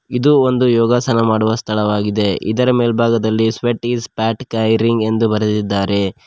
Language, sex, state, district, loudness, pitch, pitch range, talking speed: Kannada, male, Karnataka, Koppal, -16 LUFS, 115 Hz, 110-120 Hz, 125 wpm